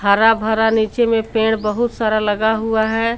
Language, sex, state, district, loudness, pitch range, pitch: Hindi, female, Jharkhand, Garhwa, -17 LUFS, 215-225 Hz, 220 Hz